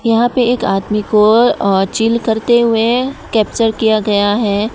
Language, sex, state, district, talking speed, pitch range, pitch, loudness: Hindi, female, Tripura, West Tripura, 165 wpm, 210-235 Hz, 220 Hz, -13 LUFS